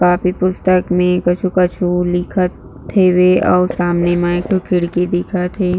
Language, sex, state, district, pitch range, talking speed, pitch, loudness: Chhattisgarhi, female, Chhattisgarh, Jashpur, 175-185 Hz, 145 wpm, 180 Hz, -15 LUFS